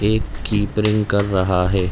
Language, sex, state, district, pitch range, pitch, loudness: Hindi, male, Chhattisgarh, Raigarh, 95-105 Hz, 100 Hz, -19 LUFS